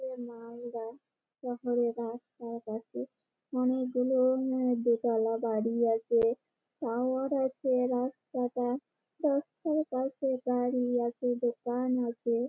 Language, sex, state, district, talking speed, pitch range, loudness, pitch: Bengali, female, West Bengal, Malda, 90 wpm, 235-255 Hz, -31 LUFS, 245 Hz